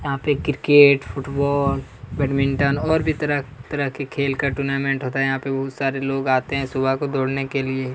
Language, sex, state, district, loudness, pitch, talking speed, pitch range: Hindi, male, Chhattisgarh, Kabirdham, -21 LUFS, 135 Hz, 205 wpm, 135-140 Hz